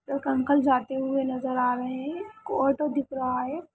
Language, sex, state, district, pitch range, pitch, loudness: Hindi, female, Bihar, Sitamarhi, 260-285 Hz, 270 Hz, -27 LUFS